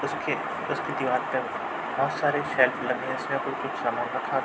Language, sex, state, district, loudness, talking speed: Hindi, male, Uttar Pradesh, Budaun, -27 LUFS, 200 wpm